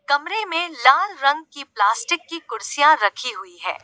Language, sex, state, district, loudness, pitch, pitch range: Hindi, female, Uttar Pradesh, Lalitpur, -20 LUFS, 305 Hz, 275-345 Hz